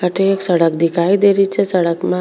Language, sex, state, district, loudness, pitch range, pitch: Rajasthani, female, Rajasthan, Churu, -14 LUFS, 170-195 Hz, 180 Hz